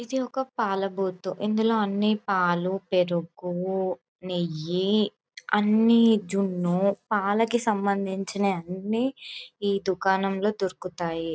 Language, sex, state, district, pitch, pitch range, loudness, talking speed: Telugu, female, Andhra Pradesh, Anantapur, 195 Hz, 185-215 Hz, -26 LUFS, 90 wpm